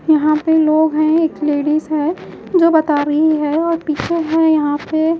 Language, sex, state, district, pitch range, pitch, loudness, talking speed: Hindi, female, Haryana, Jhajjar, 305-320 Hz, 315 Hz, -15 LUFS, 185 wpm